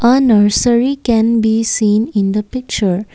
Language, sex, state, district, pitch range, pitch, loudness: English, female, Assam, Kamrup Metropolitan, 210-240 Hz, 225 Hz, -13 LUFS